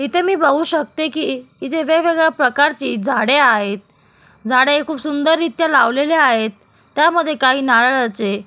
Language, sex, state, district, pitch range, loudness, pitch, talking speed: Marathi, female, Maharashtra, Solapur, 240-320 Hz, -15 LUFS, 285 Hz, 140 wpm